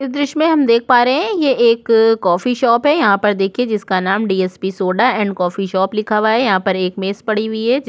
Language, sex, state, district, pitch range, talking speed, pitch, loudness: Hindi, female, Chhattisgarh, Korba, 195-245 Hz, 250 wpm, 215 Hz, -15 LUFS